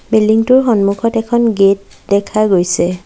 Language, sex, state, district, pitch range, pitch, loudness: Assamese, female, Assam, Sonitpur, 195-230 Hz, 215 Hz, -13 LUFS